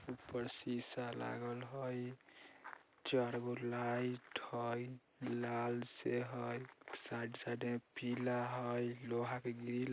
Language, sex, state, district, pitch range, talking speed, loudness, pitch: Bajjika, male, Bihar, Vaishali, 120-125 Hz, 125 wpm, -43 LUFS, 120 Hz